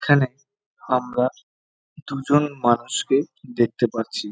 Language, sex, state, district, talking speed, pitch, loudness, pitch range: Bengali, male, West Bengal, North 24 Parganas, 85 wpm, 125 Hz, -22 LUFS, 120-140 Hz